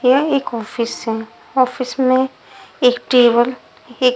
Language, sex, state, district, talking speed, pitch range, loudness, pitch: Hindi, female, Punjab, Pathankot, 130 wpm, 240-255 Hz, -17 LUFS, 250 Hz